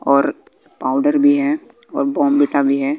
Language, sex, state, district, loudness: Hindi, male, Bihar, West Champaran, -17 LUFS